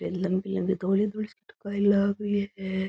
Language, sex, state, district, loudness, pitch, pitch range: Rajasthani, female, Rajasthan, Nagaur, -27 LUFS, 200 Hz, 190-205 Hz